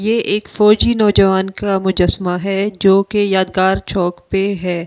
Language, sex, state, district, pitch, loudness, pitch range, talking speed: Hindi, female, Delhi, New Delhi, 195 Hz, -15 LUFS, 190-205 Hz, 160 wpm